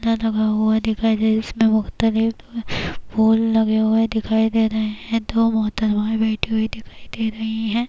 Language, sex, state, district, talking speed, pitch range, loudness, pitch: Urdu, female, Bihar, Kishanganj, 190 wpm, 220-225 Hz, -20 LUFS, 220 Hz